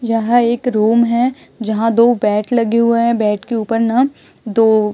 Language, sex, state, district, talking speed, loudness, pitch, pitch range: Hindi, female, Chhattisgarh, Raipur, 180 wpm, -15 LUFS, 230 Hz, 220-235 Hz